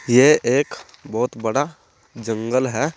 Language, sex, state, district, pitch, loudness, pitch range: Hindi, male, Uttar Pradesh, Saharanpur, 125 Hz, -20 LUFS, 115-140 Hz